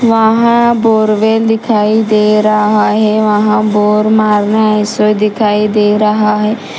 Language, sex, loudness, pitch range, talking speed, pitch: Hindi, female, -10 LUFS, 210-220 Hz, 125 wpm, 215 Hz